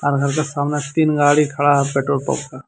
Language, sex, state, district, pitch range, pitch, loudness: Hindi, male, Jharkhand, Deoghar, 140-150 Hz, 145 Hz, -18 LUFS